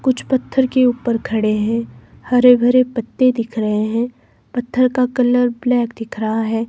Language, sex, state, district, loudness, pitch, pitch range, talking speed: Hindi, female, Himachal Pradesh, Shimla, -17 LUFS, 245 Hz, 225-250 Hz, 170 wpm